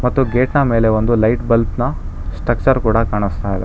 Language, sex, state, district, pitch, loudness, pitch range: Kannada, male, Karnataka, Bangalore, 115 Hz, -16 LUFS, 100-125 Hz